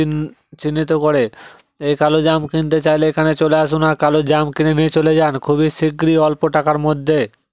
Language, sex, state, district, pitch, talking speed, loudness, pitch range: Bengali, male, West Bengal, Jhargram, 155 Hz, 185 wpm, -16 LUFS, 150-155 Hz